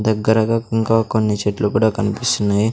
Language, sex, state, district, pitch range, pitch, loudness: Telugu, male, Andhra Pradesh, Sri Satya Sai, 105-115 Hz, 110 Hz, -18 LUFS